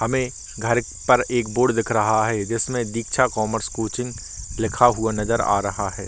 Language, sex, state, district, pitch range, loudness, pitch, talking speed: Hindi, male, Bihar, Samastipur, 105-120 Hz, -22 LUFS, 110 Hz, 180 wpm